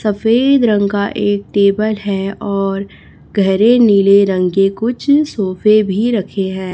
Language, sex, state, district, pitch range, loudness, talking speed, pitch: Hindi, female, Chhattisgarh, Raipur, 195-220 Hz, -14 LUFS, 145 wpm, 205 Hz